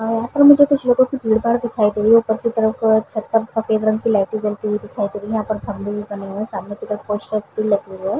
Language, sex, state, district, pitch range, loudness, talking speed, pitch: Hindi, female, Bihar, Vaishali, 210-225 Hz, -18 LUFS, 270 wpm, 215 Hz